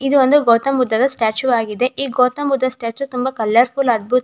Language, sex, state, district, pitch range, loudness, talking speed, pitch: Kannada, female, Karnataka, Shimoga, 235-270 Hz, -17 LUFS, 170 wpm, 255 Hz